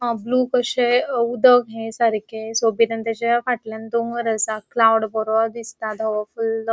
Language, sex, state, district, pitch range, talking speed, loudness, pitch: Konkani, female, Goa, North and South Goa, 220-235 Hz, 160 wpm, -20 LUFS, 225 Hz